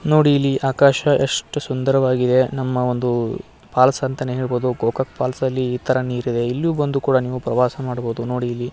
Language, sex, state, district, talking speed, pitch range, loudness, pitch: Kannada, male, Karnataka, Belgaum, 165 wpm, 125-135 Hz, -19 LUFS, 130 Hz